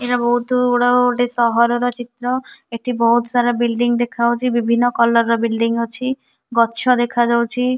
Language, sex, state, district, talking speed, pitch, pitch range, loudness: Odia, female, Odisha, Nuapada, 175 wpm, 240 Hz, 235-245 Hz, -17 LUFS